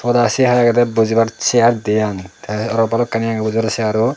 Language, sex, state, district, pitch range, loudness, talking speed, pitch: Chakma, male, Tripura, Dhalai, 110-120 Hz, -16 LUFS, 175 wpm, 115 Hz